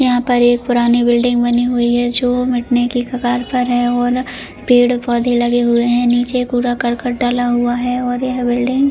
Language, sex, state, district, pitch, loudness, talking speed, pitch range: Hindi, female, Jharkhand, Jamtara, 245 Hz, -15 LUFS, 200 wpm, 240-245 Hz